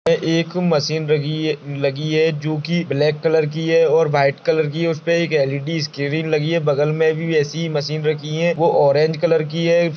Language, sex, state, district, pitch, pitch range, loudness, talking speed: Hindi, male, Chhattisgarh, Rajnandgaon, 155 Hz, 150-165 Hz, -18 LUFS, 210 wpm